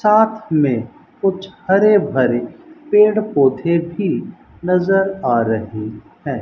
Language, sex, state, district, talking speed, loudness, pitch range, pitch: Hindi, male, Rajasthan, Bikaner, 110 wpm, -17 LUFS, 130-210 Hz, 185 Hz